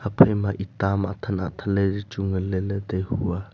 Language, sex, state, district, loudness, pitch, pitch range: Wancho, male, Arunachal Pradesh, Longding, -24 LUFS, 100 Hz, 95-100 Hz